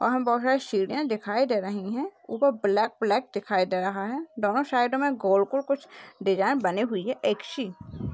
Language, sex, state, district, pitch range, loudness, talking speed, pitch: Hindi, female, Rajasthan, Nagaur, 195-270 Hz, -26 LUFS, 190 wpm, 225 Hz